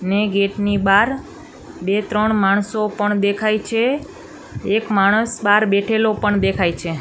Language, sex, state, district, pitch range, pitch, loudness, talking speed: Gujarati, female, Gujarat, Gandhinagar, 200-215 Hz, 205 Hz, -18 LUFS, 145 wpm